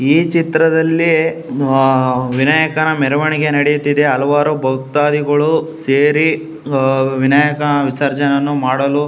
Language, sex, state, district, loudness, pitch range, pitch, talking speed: Kannada, male, Karnataka, Shimoga, -14 LUFS, 135-155 Hz, 145 Hz, 85 wpm